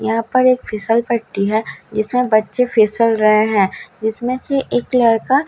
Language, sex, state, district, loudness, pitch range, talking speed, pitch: Hindi, female, Bihar, Katihar, -16 LUFS, 215-250 Hz, 195 wpm, 230 Hz